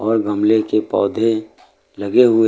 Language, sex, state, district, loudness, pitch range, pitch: Hindi, male, Uttar Pradesh, Lucknow, -17 LUFS, 105-115 Hz, 110 Hz